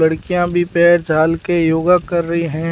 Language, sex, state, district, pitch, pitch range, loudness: Hindi, male, Rajasthan, Bikaner, 170 Hz, 160-175 Hz, -15 LUFS